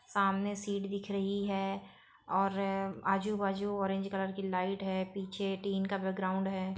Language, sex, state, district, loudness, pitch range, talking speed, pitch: Hindi, female, Bihar, Saran, -35 LUFS, 195-200 Hz, 160 wpm, 195 Hz